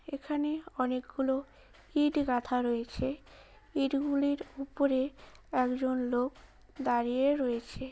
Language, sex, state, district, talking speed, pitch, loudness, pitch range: Bengali, female, West Bengal, Paschim Medinipur, 90 wpm, 270 Hz, -32 LUFS, 250-285 Hz